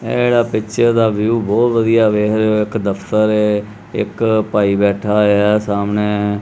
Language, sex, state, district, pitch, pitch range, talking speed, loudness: Punjabi, male, Punjab, Kapurthala, 105 Hz, 105-110 Hz, 160 wpm, -15 LUFS